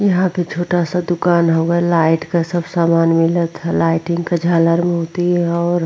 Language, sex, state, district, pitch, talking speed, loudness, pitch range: Hindi, female, Bihar, Vaishali, 170 Hz, 195 wpm, -16 LUFS, 165-175 Hz